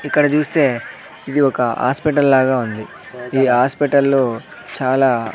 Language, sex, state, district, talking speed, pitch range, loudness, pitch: Telugu, male, Andhra Pradesh, Sri Satya Sai, 110 wpm, 125-140 Hz, -16 LUFS, 130 Hz